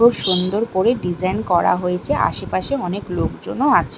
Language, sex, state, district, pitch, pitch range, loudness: Bengali, female, West Bengal, Malda, 185 Hz, 180-215 Hz, -19 LUFS